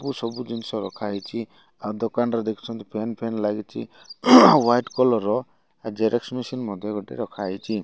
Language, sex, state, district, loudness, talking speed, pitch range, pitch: Odia, male, Odisha, Malkangiri, -23 LUFS, 140 wpm, 105-120 Hz, 115 Hz